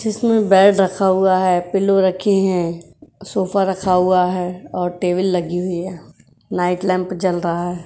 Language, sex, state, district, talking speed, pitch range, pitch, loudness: Hindi, female, Uttar Pradesh, Jyotiba Phule Nagar, 170 wpm, 180-195 Hz, 185 Hz, -17 LUFS